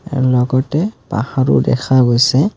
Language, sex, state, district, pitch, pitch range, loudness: Assamese, male, Assam, Kamrup Metropolitan, 130 Hz, 125-145 Hz, -15 LUFS